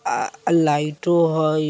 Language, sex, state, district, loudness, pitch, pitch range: Bajjika, male, Bihar, Vaishali, -20 LUFS, 160 Hz, 155-175 Hz